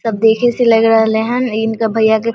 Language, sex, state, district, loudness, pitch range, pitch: Maithili, female, Bihar, Vaishali, -13 LUFS, 220-230 Hz, 225 Hz